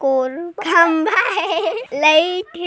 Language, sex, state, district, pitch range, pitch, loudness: Hindi, female, Chhattisgarh, Korba, 310-360 Hz, 335 Hz, -16 LUFS